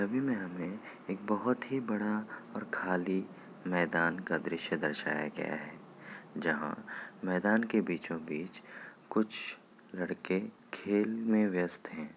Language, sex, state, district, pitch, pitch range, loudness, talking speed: Hindi, male, Bihar, Kishanganj, 105 Hz, 90-110 Hz, -34 LUFS, 135 wpm